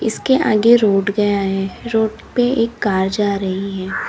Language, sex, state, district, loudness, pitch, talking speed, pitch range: Hindi, female, Uttar Pradesh, Lalitpur, -17 LUFS, 210 Hz, 175 wpm, 195-230 Hz